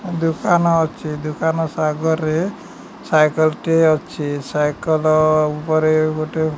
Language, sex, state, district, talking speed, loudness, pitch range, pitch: Odia, male, Odisha, Nuapada, 110 wpm, -18 LUFS, 155-160 Hz, 155 Hz